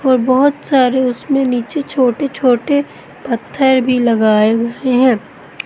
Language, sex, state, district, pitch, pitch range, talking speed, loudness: Hindi, female, Madhya Pradesh, Katni, 255 Hz, 240-270 Hz, 125 wpm, -14 LUFS